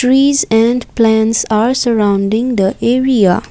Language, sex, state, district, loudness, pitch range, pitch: English, female, Assam, Kamrup Metropolitan, -12 LUFS, 215-250 Hz, 225 Hz